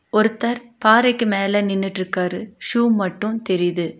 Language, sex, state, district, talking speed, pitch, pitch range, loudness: Tamil, female, Tamil Nadu, Nilgiris, 105 wpm, 210 Hz, 185-230 Hz, -19 LUFS